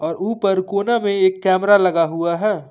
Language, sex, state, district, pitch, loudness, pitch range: Hindi, male, Jharkhand, Ranchi, 190 Hz, -17 LUFS, 170-205 Hz